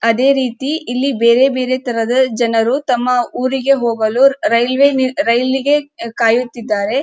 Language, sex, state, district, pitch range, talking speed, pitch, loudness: Kannada, female, Karnataka, Dharwad, 235-270 Hz, 120 wpm, 255 Hz, -14 LUFS